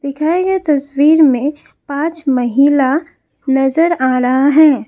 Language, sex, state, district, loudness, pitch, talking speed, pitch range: Hindi, female, Assam, Kamrup Metropolitan, -13 LUFS, 285 Hz, 125 wpm, 270-315 Hz